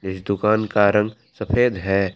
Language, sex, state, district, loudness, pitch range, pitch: Hindi, male, Jharkhand, Palamu, -20 LUFS, 95-110 Hz, 105 Hz